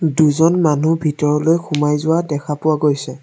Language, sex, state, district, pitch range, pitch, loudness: Assamese, male, Assam, Sonitpur, 150-160 Hz, 150 Hz, -16 LUFS